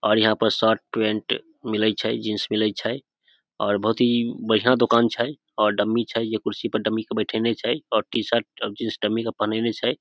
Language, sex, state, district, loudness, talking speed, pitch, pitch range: Maithili, male, Bihar, Samastipur, -23 LUFS, 190 wpm, 110 Hz, 110-115 Hz